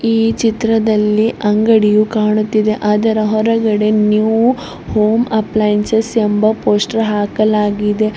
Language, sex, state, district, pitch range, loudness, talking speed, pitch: Kannada, female, Karnataka, Bidar, 210-225 Hz, -14 LUFS, 90 wpm, 215 Hz